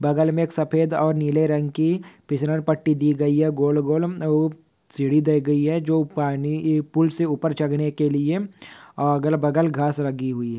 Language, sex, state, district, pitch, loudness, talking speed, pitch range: Hindi, male, Maharashtra, Dhule, 155 Hz, -22 LUFS, 185 wpm, 145-160 Hz